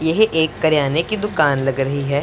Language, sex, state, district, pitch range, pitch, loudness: Hindi, male, Punjab, Pathankot, 140-165 Hz, 155 Hz, -18 LUFS